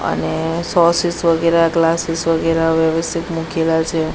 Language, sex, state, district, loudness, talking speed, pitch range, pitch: Gujarati, female, Gujarat, Gandhinagar, -16 LUFS, 115 wpm, 160-170 Hz, 165 Hz